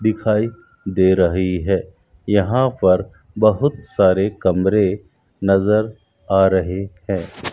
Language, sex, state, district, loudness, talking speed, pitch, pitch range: Hindi, male, Rajasthan, Bikaner, -18 LUFS, 105 wpm, 95 Hz, 95-110 Hz